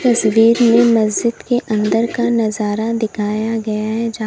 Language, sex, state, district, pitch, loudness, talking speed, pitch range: Hindi, female, Uttar Pradesh, Lalitpur, 225 Hz, -16 LUFS, 140 wpm, 215-235 Hz